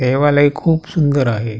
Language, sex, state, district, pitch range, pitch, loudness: Marathi, male, Maharashtra, Pune, 125-150 Hz, 145 Hz, -15 LUFS